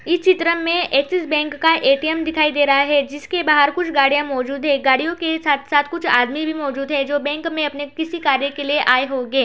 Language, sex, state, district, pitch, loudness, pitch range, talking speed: Hindi, female, Uttar Pradesh, Budaun, 290 Hz, -18 LUFS, 275-325 Hz, 210 wpm